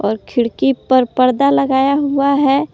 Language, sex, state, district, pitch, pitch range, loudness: Hindi, female, Jharkhand, Palamu, 270 Hz, 255-280 Hz, -14 LUFS